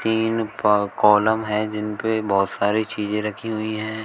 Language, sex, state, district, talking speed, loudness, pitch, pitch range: Hindi, male, Uttar Pradesh, Shamli, 165 wpm, -21 LUFS, 110 Hz, 105-110 Hz